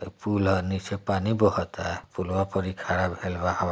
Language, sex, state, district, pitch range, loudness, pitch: Bhojpuri, male, Bihar, East Champaran, 90-100 Hz, -27 LUFS, 95 Hz